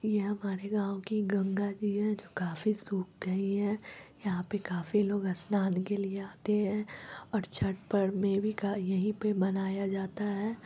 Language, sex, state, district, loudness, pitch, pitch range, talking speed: Hindi, female, Bihar, Lakhisarai, -33 LUFS, 200 Hz, 195-210 Hz, 180 wpm